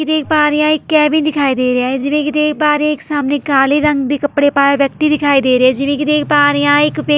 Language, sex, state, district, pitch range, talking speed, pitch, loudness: Punjabi, female, Delhi, New Delhi, 280-300 Hz, 315 wpm, 290 Hz, -13 LUFS